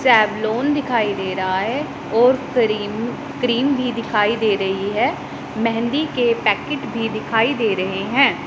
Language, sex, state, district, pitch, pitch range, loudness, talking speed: Hindi, female, Punjab, Pathankot, 230 Hz, 210-250 Hz, -19 LUFS, 150 wpm